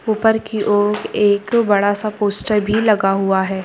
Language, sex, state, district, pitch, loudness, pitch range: Hindi, female, Bihar, Jamui, 210 Hz, -17 LUFS, 200-215 Hz